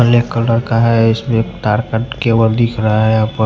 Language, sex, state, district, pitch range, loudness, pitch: Hindi, male, Punjab, Pathankot, 110-115 Hz, -14 LUFS, 115 Hz